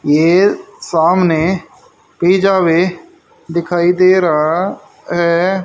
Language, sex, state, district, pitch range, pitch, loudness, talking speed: Hindi, female, Haryana, Charkhi Dadri, 170-190 Hz, 180 Hz, -13 LUFS, 85 wpm